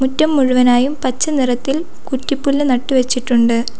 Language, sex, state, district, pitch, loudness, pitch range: Malayalam, female, Kerala, Kollam, 265 Hz, -15 LUFS, 250-285 Hz